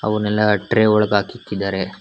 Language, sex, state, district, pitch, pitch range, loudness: Kannada, male, Karnataka, Bangalore, 105 Hz, 100-105 Hz, -18 LUFS